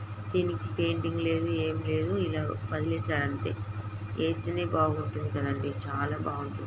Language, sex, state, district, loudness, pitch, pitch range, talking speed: Telugu, female, Andhra Pradesh, Guntur, -31 LUFS, 105 Hz, 105-115 Hz, 115 wpm